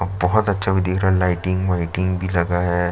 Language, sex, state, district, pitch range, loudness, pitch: Hindi, male, Chhattisgarh, Sukma, 90-95 Hz, -20 LUFS, 90 Hz